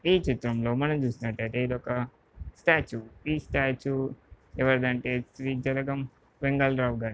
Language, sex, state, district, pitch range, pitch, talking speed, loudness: Telugu, male, Telangana, Karimnagar, 120-135 Hz, 130 Hz, 135 wpm, -28 LUFS